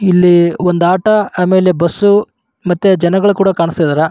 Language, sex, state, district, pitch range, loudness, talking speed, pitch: Kannada, male, Karnataka, Raichur, 175-195 Hz, -12 LUFS, 130 wpm, 180 Hz